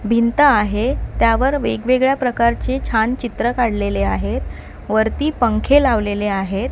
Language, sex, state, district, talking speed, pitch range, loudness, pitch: Marathi, female, Maharashtra, Mumbai Suburban, 115 wpm, 205-255 Hz, -17 LUFS, 230 Hz